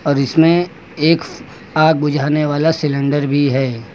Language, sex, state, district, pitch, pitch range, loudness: Hindi, male, Uttar Pradesh, Lucknow, 150 Hz, 140-160 Hz, -15 LUFS